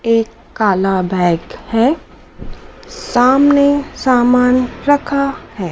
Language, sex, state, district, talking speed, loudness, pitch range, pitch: Hindi, female, Madhya Pradesh, Dhar, 85 wpm, -14 LUFS, 210-280 Hz, 250 Hz